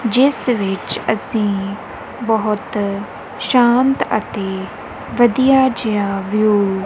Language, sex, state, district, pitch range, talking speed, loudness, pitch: Punjabi, female, Punjab, Kapurthala, 200-245 Hz, 85 wpm, -17 LUFS, 215 Hz